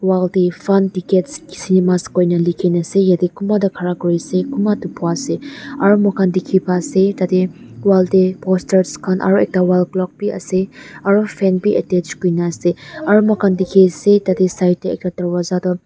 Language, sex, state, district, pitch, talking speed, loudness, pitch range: Nagamese, female, Nagaland, Dimapur, 185 Hz, 195 wpm, -16 LUFS, 180-195 Hz